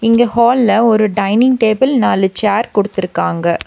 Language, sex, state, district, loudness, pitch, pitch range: Tamil, female, Tamil Nadu, Nilgiris, -13 LUFS, 220 Hz, 200-235 Hz